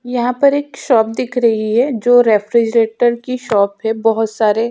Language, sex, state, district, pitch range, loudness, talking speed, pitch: Hindi, female, Chhattisgarh, Sukma, 225-250 Hz, -15 LUFS, 190 wpm, 235 Hz